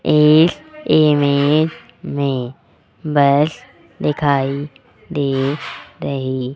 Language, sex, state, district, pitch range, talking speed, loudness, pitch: Hindi, male, Rajasthan, Jaipur, 135-155 Hz, 75 wpm, -17 LUFS, 145 Hz